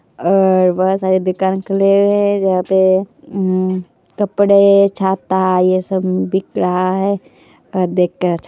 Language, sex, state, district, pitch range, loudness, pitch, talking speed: Hindi, female, Bihar, Begusarai, 185-195 Hz, -15 LUFS, 190 Hz, 165 wpm